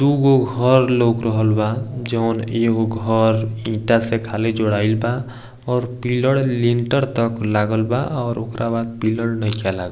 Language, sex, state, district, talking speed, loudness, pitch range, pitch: Bhojpuri, male, Bihar, East Champaran, 150 wpm, -19 LUFS, 110-125 Hz, 115 Hz